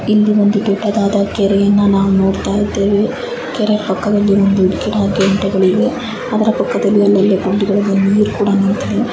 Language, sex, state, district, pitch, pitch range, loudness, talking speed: Kannada, female, Karnataka, Bijapur, 200 Hz, 195-210 Hz, -14 LUFS, 85 wpm